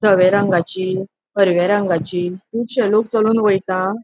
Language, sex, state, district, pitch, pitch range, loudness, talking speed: Konkani, female, Goa, North and South Goa, 195 Hz, 185-210 Hz, -17 LUFS, 120 wpm